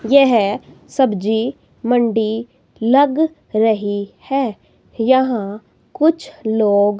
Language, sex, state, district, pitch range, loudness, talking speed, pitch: Hindi, female, Himachal Pradesh, Shimla, 215-270 Hz, -17 LUFS, 75 wpm, 230 Hz